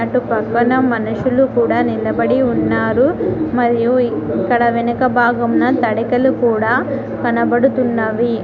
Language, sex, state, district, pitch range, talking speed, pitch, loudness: Telugu, female, Telangana, Mahabubabad, 235-255 Hz, 90 wpm, 240 Hz, -15 LUFS